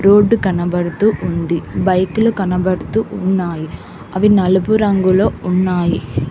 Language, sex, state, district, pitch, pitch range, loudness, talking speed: Telugu, female, Telangana, Hyderabad, 185 Hz, 175-205 Hz, -15 LUFS, 95 wpm